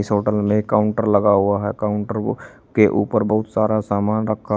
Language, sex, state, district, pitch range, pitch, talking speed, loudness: Hindi, male, Uttar Pradesh, Shamli, 105-110 Hz, 105 Hz, 210 wpm, -19 LUFS